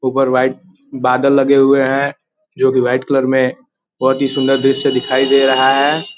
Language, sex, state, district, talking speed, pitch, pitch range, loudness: Hindi, male, Bihar, Gopalganj, 185 wpm, 135 Hz, 130-140 Hz, -14 LUFS